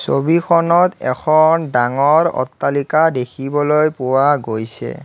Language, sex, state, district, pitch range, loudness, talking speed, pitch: Assamese, male, Assam, Kamrup Metropolitan, 130-160 Hz, -15 LUFS, 85 wpm, 145 Hz